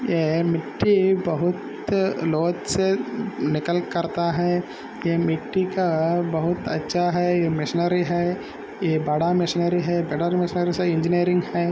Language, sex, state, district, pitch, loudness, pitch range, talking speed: Hindi, male, Maharashtra, Solapur, 175 Hz, -23 LUFS, 165-180 Hz, 115 wpm